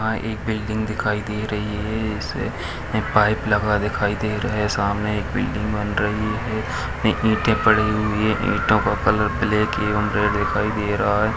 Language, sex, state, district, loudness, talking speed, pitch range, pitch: Hindi, male, Bihar, Madhepura, -21 LUFS, 185 wpm, 105-110 Hz, 105 Hz